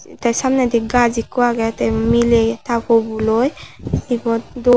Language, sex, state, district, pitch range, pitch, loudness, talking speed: Chakma, male, Tripura, Unakoti, 230-245 Hz, 235 Hz, -17 LUFS, 140 wpm